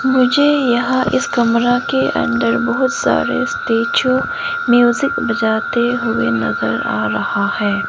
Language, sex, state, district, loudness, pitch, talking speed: Hindi, female, Arunachal Pradesh, Lower Dibang Valley, -16 LUFS, 235 Hz, 120 wpm